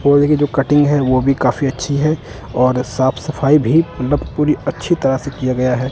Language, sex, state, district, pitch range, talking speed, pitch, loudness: Hindi, male, Punjab, Kapurthala, 130-145 Hz, 220 wpm, 135 Hz, -16 LUFS